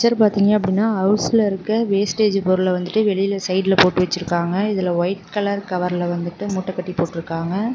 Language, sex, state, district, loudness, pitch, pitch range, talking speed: Tamil, female, Tamil Nadu, Namakkal, -19 LUFS, 190 Hz, 180-205 Hz, 145 wpm